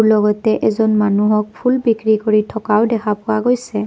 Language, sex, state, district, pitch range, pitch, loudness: Assamese, female, Assam, Kamrup Metropolitan, 210-220 Hz, 215 Hz, -16 LUFS